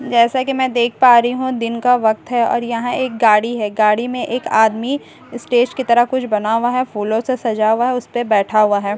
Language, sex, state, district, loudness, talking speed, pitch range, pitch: Hindi, female, Bihar, Katihar, -16 LUFS, 245 wpm, 220-250 Hz, 240 Hz